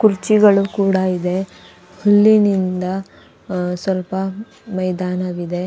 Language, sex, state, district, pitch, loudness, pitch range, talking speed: Kannada, female, Karnataka, Dakshina Kannada, 190 Hz, -17 LUFS, 180-200 Hz, 75 wpm